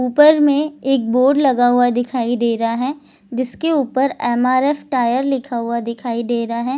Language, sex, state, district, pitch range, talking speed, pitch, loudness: Hindi, female, Bihar, Jahanabad, 240-275 Hz, 185 wpm, 250 Hz, -17 LUFS